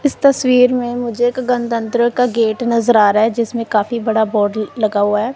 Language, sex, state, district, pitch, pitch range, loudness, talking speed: Hindi, female, Punjab, Kapurthala, 235 Hz, 215-245 Hz, -15 LUFS, 215 wpm